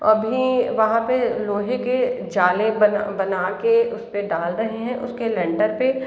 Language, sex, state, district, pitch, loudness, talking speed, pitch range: Hindi, female, Bihar, East Champaran, 225 Hz, -21 LUFS, 150 wpm, 205-250 Hz